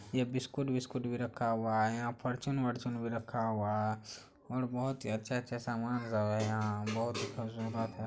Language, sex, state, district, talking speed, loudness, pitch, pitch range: Hindi, male, Bihar, Araria, 215 wpm, -36 LUFS, 115 Hz, 110-125 Hz